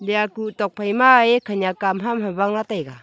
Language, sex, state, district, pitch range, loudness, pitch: Wancho, female, Arunachal Pradesh, Longding, 195-220 Hz, -19 LUFS, 210 Hz